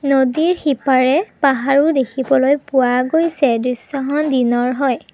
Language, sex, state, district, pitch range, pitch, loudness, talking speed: Assamese, female, Assam, Kamrup Metropolitan, 255-285 Hz, 275 Hz, -16 LUFS, 105 wpm